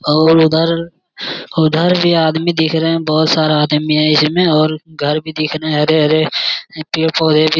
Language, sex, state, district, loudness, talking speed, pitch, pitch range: Hindi, male, Bihar, Jamui, -13 LUFS, 180 wpm, 160 Hz, 155-160 Hz